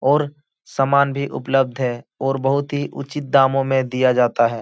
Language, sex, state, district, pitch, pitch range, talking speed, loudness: Hindi, male, Uttar Pradesh, Etah, 135 Hz, 130-140 Hz, 180 wpm, -19 LUFS